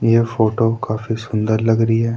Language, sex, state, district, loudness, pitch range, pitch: Hindi, male, Uttarakhand, Tehri Garhwal, -18 LUFS, 110-115 Hz, 115 Hz